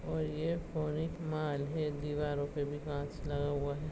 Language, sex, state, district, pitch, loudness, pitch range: Hindi, male, Goa, North and South Goa, 150 Hz, -37 LUFS, 145-155 Hz